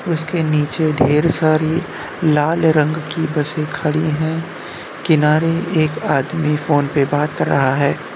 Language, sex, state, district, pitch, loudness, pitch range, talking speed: Hindi, male, Uttar Pradesh, Muzaffarnagar, 155 Hz, -17 LUFS, 150-160 Hz, 140 wpm